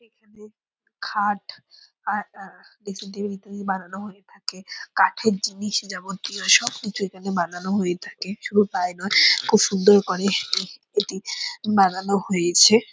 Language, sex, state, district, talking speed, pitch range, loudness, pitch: Bengali, female, West Bengal, Purulia, 145 wpm, 190-210 Hz, -21 LUFS, 200 Hz